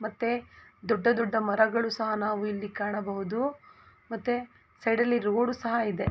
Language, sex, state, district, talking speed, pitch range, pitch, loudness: Kannada, female, Karnataka, Mysore, 140 wpm, 210-240 Hz, 225 Hz, -29 LUFS